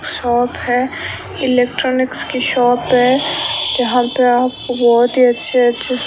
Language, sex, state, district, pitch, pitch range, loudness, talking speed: Hindi, female, Rajasthan, Bikaner, 250 Hz, 245-255 Hz, -15 LUFS, 130 wpm